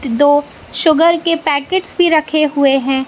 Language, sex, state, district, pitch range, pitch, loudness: Hindi, female, Madhya Pradesh, Katni, 285-335 Hz, 305 Hz, -13 LUFS